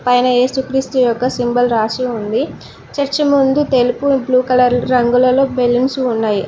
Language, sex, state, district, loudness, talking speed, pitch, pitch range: Telugu, female, Telangana, Mahabubabad, -15 LUFS, 130 wpm, 250 Hz, 245-265 Hz